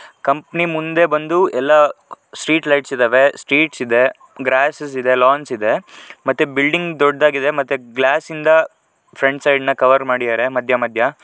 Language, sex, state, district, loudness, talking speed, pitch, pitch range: Kannada, male, Karnataka, Shimoga, -16 LUFS, 135 wpm, 140 Hz, 130-155 Hz